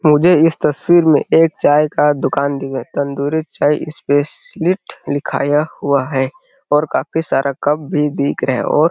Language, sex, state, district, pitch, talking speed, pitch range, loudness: Hindi, male, Chhattisgarh, Sarguja, 150 Hz, 190 wpm, 140-160 Hz, -16 LUFS